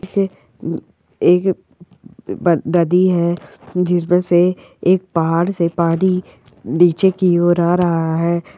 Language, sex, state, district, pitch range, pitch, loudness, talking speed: Hindi, female, Andhra Pradesh, Anantapur, 170-185 Hz, 175 Hz, -16 LUFS, 120 wpm